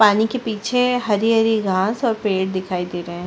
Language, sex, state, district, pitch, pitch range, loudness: Hindi, female, Chhattisgarh, Sarguja, 210 Hz, 190-225 Hz, -19 LUFS